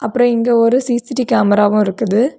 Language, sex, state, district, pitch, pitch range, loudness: Tamil, female, Tamil Nadu, Kanyakumari, 235 Hz, 210-245 Hz, -14 LUFS